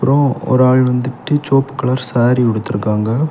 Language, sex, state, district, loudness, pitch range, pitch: Tamil, male, Tamil Nadu, Kanyakumari, -15 LUFS, 120-135 Hz, 130 Hz